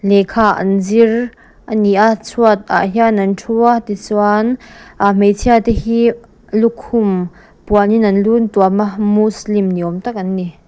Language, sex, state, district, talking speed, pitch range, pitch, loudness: Mizo, female, Mizoram, Aizawl, 165 wpm, 200-230 Hz, 215 Hz, -14 LUFS